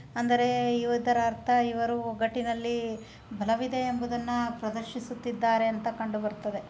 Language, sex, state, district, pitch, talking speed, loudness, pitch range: Kannada, female, Karnataka, Belgaum, 235 Hz, 100 wpm, -29 LUFS, 225-240 Hz